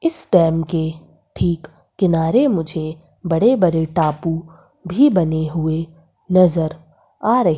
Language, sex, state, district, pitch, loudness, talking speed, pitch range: Hindi, female, Madhya Pradesh, Umaria, 165 Hz, -18 LUFS, 120 wpm, 160-185 Hz